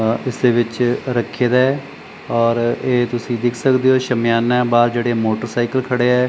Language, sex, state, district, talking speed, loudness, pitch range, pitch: Punjabi, male, Punjab, Pathankot, 180 wpm, -17 LUFS, 120-125 Hz, 120 Hz